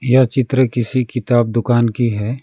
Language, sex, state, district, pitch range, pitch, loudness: Hindi, male, West Bengal, Alipurduar, 115-130 Hz, 120 Hz, -16 LUFS